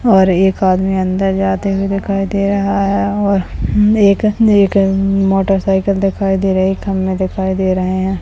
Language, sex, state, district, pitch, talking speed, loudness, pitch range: Hindi, female, Rajasthan, Churu, 195 Hz, 155 wpm, -14 LUFS, 190-200 Hz